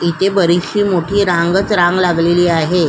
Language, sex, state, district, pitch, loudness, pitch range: Marathi, female, Maharashtra, Solapur, 175 Hz, -13 LUFS, 170-195 Hz